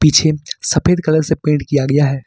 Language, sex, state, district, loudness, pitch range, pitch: Hindi, male, Jharkhand, Ranchi, -15 LUFS, 145-155 Hz, 150 Hz